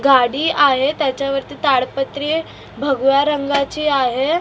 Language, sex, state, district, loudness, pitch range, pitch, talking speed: Marathi, female, Maharashtra, Mumbai Suburban, -17 LUFS, 270-295 Hz, 275 Hz, 150 wpm